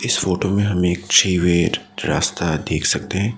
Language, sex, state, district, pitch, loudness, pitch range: Hindi, male, Assam, Sonitpur, 90 Hz, -18 LUFS, 90-100 Hz